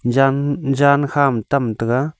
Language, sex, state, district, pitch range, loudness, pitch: Wancho, male, Arunachal Pradesh, Longding, 125-140 Hz, -17 LUFS, 140 Hz